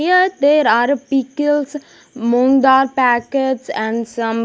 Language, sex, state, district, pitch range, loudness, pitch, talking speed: English, female, Punjab, Kapurthala, 240-290 Hz, -15 LUFS, 265 Hz, 135 wpm